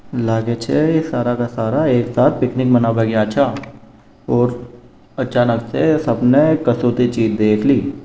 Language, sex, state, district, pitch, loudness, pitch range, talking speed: Marwari, male, Rajasthan, Nagaur, 120 Hz, -16 LUFS, 115-125 Hz, 150 wpm